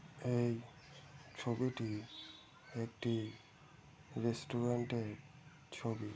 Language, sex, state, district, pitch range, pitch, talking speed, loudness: Bengali, male, West Bengal, Malda, 115-145 Hz, 120 Hz, 60 wpm, -41 LUFS